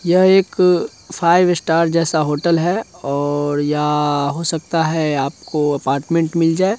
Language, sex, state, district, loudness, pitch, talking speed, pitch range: Hindi, male, Bihar, Sitamarhi, -17 LUFS, 165 Hz, 150 wpm, 150-175 Hz